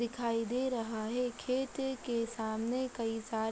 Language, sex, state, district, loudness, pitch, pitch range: Hindi, female, Bihar, Madhepura, -35 LUFS, 235 Hz, 225-255 Hz